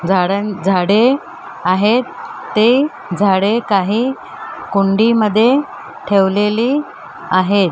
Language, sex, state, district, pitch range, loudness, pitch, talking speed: Marathi, female, Maharashtra, Mumbai Suburban, 195-235 Hz, -15 LUFS, 205 Hz, 70 wpm